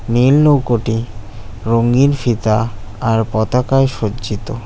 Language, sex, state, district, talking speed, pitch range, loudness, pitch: Bengali, male, West Bengal, Cooch Behar, 90 wpm, 110-125 Hz, -15 LUFS, 115 Hz